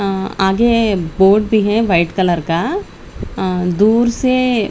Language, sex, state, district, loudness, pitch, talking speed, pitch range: Hindi, female, Chandigarh, Chandigarh, -15 LUFS, 205 Hz, 115 wpm, 185-230 Hz